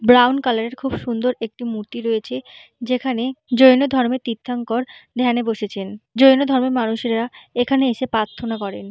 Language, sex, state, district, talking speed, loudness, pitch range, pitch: Bengali, female, West Bengal, Malda, 150 wpm, -19 LUFS, 225-255 Hz, 245 Hz